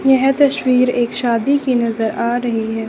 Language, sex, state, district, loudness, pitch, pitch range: Hindi, female, Haryana, Charkhi Dadri, -16 LUFS, 245 Hz, 230-265 Hz